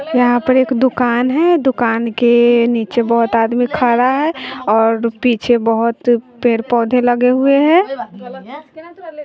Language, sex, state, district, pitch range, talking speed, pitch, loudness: Hindi, female, Bihar, West Champaran, 235-265 Hz, 130 wpm, 245 Hz, -14 LUFS